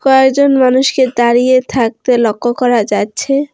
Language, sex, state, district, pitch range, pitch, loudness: Bengali, female, West Bengal, Alipurduar, 235-265 Hz, 255 Hz, -12 LUFS